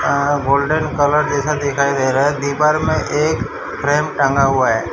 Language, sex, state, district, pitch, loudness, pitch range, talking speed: Hindi, male, Gujarat, Valsad, 145 Hz, -16 LUFS, 140-150 Hz, 185 wpm